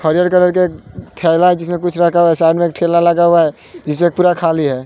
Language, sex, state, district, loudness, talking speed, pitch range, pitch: Hindi, male, Bihar, West Champaran, -13 LUFS, 245 wpm, 165-175 Hz, 170 Hz